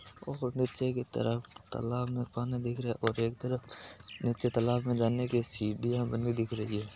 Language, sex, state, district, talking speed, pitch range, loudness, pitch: Marwari, male, Rajasthan, Nagaur, 200 wpm, 115-125 Hz, -33 LUFS, 120 Hz